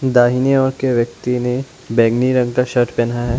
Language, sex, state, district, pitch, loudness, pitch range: Hindi, male, Assam, Sonitpur, 125 Hz, -17 LUFS, 120-130 Hz